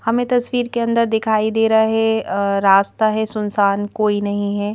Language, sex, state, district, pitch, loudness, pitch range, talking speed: Hindi, female, Madhya Pradesh, Bhopal, 220 Hz, -17 LUFS, 205-225 Hz, 190 wpm